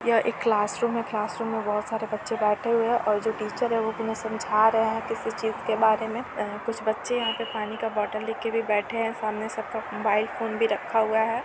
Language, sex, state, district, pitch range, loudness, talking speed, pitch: Hindi, female, Bihar, East Champaran, 215-225 Hz, -26 LUFS, 235 wpm, 220 Hz